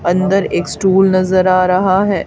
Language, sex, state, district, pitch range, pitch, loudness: Hindi, female, Haryana, Charkhi Dadri, 185-195 Hz, 185 Hz, -13 LUFS